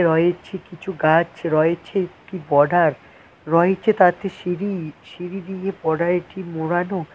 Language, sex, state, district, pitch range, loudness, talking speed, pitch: Bengali, male, West Bengal, Cooch Behar, 165-190 Hz, -20 LUFS, 110 wpm, 175 Hz